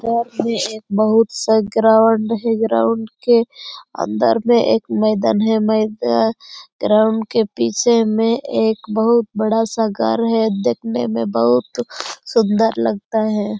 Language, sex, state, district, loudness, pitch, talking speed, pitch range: Hindi, female, Jharkhand, Sahebganj, -17 LUFS, 220 Hz, 135 wpm, 205-230 Hz